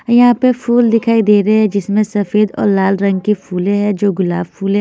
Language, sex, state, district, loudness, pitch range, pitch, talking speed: Hindi, female, Haryana, Jhajjar, -13 LUFS, 195-225 Hz, 205 Hz, 225 wpm